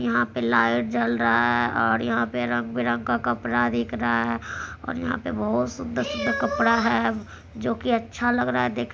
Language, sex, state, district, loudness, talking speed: Maithili, male, Bihar, Supaul, -24 LUFS, 210 wpm